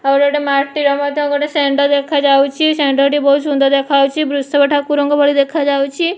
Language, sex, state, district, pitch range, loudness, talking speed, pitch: Odia, female, Odisha, Nuapada, 280-290 Hz, -14 LUFS, 145 wpm, 285 Hz